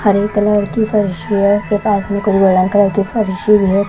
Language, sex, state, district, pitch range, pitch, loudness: Hindi, female, Maharashtra, Washim, 195-210 Hz, 205 Hz, -14 LUFS